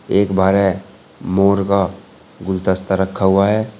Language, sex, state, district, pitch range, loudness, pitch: Hindi, male, Uttar Pradesh, Shamli, 95-100 Hz, -16 LUFS, 95 Hz